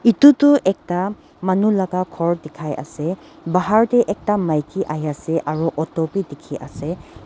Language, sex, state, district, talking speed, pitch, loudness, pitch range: Nagamese, female, Nagaland, Dimapur, 140 wpm, 180 Hz, -19 LUFS, 160-205 Hz